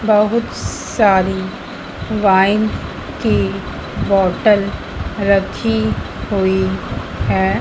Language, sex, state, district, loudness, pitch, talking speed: Hindi, female, Madhya Pradesh, Dhar, -17 LUFS, 190 Hz, 65 wpm